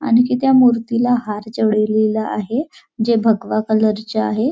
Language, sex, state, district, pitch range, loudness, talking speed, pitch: Marathi, female, Maharashtra, Nagpur, 215-245 Hz, -17 LUFS, 135 wpm, 225 Hz